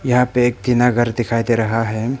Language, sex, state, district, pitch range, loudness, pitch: Hindi, male, Arunachal Pradesh, Papum Pare, 115-125 Hz, -17 LUFS, 120 Hz